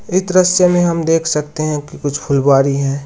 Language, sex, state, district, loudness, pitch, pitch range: Hindi, male, Uttar Pradesh, Shamli, -14 LUFS, 155 Hz, 140-175 Hz